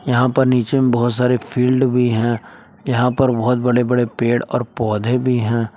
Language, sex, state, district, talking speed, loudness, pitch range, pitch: Hindi, male, Jharkhand, Palamu, 195 wpm, -17 LUFS, 120-125 Hz, 125 Hz